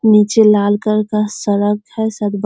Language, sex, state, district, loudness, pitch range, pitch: Hindi, female, Bihar, Sitamarhi, -14 LUFS, 205-215 Hz, 210 Hz